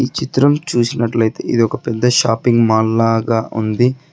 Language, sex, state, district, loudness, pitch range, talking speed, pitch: Telugu, male, Telangana, Hyderabad, -15 LUFS, 115-125 Hz, 130 wpm, 115 Hz